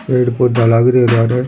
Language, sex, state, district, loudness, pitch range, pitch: Rajasthani, male, Rajasthan, Churu, -12 LUFS, 115-125 Hz, 125 Hz